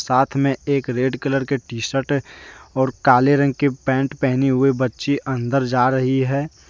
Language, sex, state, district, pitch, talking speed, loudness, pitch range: Hindi, male, Jharkhand, Deoghar, 135 Hz, 190 wpm, -19 LUFS, 130-140 Hz